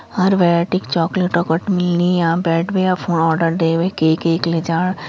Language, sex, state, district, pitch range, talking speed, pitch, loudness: Hindi, female, Uttarakhand, Uttarkashi, 165-180 Hz, 165 wpm, 170 Hz, -17 LUFS